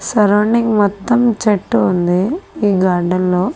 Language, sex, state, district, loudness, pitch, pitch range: Telugu, female, Andhra Pradesh, Annamaya, -15 LUFS, 205 Hz, 185-230 Hz